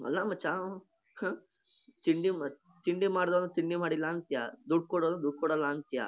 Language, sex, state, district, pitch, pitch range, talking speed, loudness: Kannada, male, Karnataka, Shimoga, 175 Hz, 160-215 Hz, 170 wpm, -33 LUFS